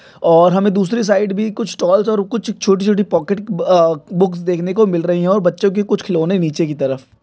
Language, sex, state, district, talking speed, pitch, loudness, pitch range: Hindi, male, Maharashtra, Nagpur, 230 wpm, 195 Hz, -15 LUFS, 170-205 Hz